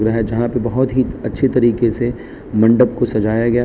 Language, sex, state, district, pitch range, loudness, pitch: Hindi, male, Gujarat, Valsad, 110-125 Hz, -16 LUFS, 120 Hz